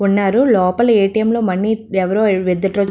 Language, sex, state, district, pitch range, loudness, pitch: Telugu, female, Andhra Pradesh, Visakhapatnam, 195-220 Hz, -15 LUFS, 200 Hz